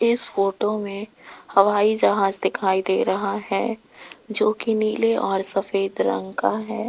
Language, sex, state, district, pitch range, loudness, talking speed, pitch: Hindi, female, Rajasthan, Jaipur, 195-225 Hz, -22 LUFS, 150 wpm, 210 Hz